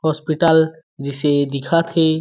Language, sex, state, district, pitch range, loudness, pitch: Chhattisgarhi, male, Chhattisgarh, Jashpur, 145-160 Hz, -18 LUFS, 160 Hz